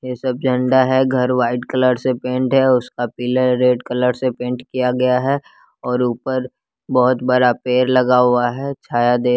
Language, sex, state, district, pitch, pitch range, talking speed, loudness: Hindi, male, Bihar, West Champaran, 125 Hz, 125-130 Hz, 190 wpm, -17 LUFS